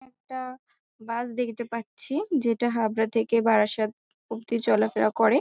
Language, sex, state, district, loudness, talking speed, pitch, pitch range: Bengali, female, West Bengal, North 24 Parganas, -26 LUFS, 135 wpm, 230 Hz, 225-250 Hz